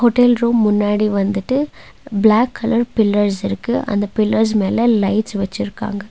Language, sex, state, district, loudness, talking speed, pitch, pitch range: Tamil, female, Tamil Nadu, Nilgiris, -17 LUFS, 125 wpm, 215 Hz, 205-235 Hz